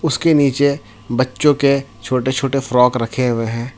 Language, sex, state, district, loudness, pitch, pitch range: Hindi, male, Jharkhand, Ranchi, -16 LUFS, 130 Hz, 120-140 Hz